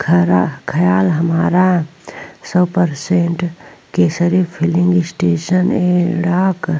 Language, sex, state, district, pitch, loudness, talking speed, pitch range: Bhojpuri, female, Uttar Pradesh, Ghazipur, 175 Hz, -15 LUFS, 90 wpm, 155-180 Hz